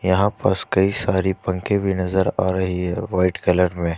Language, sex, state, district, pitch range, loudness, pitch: Hindi, male, Jharkhand, Ranchi, 90-95 Hz, -20 LUFS, 95 Hz